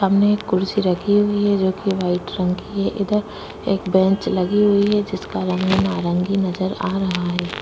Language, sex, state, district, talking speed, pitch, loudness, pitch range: Hindi, female, Maharashtra, Chandrapur, 195 wpm, 195 Hz, -20 LUFS, 185-205 Hz